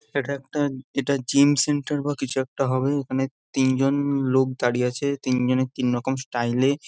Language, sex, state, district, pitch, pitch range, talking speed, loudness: Bengali, male, West Bengal, Jhargram, 135 Hz, 130-140 Hz, 155 wpm, -23 LUFS